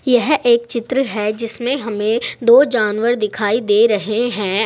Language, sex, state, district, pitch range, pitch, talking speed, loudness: Hindi, female, Uttar Pradesh, Saharanpur, 215-245 Hz, 230 Hz, 155 wpm, -16 LUFS